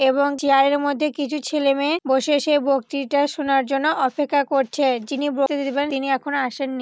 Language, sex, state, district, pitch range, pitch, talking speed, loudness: Bengali, female, West Bengal, Purulia, 275-290 Hz, 280 Hz, 160 wpm, -21 LUFS